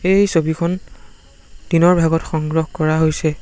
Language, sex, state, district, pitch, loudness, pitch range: Assamese, male, Assam, Sonitpur, 160 Hz, -17 LUFS, 155-170 Hz